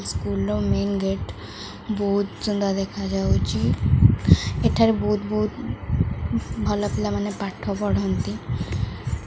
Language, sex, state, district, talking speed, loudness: Odia, female, Odisha, Khordha, 90 wpm, -23 LUFS